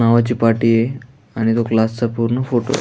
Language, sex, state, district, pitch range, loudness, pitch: Marathi, male, Maharashtra, Aurangabad, 115-120 Hz, -17 LUFS, 115 Hz